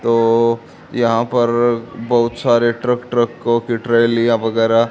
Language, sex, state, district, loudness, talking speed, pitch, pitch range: Hindi, male, Haryana, Charkhi Dadri, -16 LUFS, 120 wpm, 115 Hz, 115-120 Hz